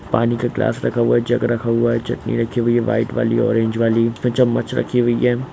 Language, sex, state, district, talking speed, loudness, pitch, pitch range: Hindi, male, Bihar, East Champaran, 240 wpm, -18 LUFS, 120 Hz, 115-120 Hz